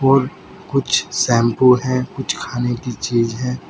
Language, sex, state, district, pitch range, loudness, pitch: Hindi, male, Uttar Pradesh, Saharanpur, 120-130 Hz, -18 LUFS, 125 Hz